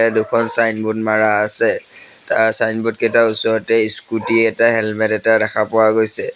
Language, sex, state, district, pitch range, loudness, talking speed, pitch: Assamese, male, Assam, Sonitpur, 110-115 Hz, -16 LUFS, 140 wpm, 110 Hz